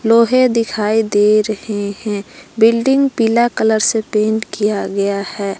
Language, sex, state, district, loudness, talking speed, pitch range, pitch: Hindi, female, Jharkhand, Palamu, -15 LUFS, 140 wpm, 205-230 Hz, 220 Hz